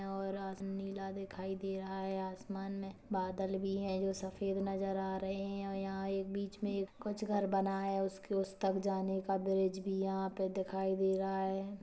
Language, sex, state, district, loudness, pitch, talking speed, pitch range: Hindi, female, Chhattisgarh, Kabirdham, -38 LUFS, 195 Hz, 210 wpm, 190-195 Hz